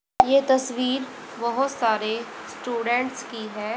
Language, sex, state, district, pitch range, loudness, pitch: Hindi, female, Haryana, Jhajjar, 230-265 Hz, -24 LUFS, 245 Hz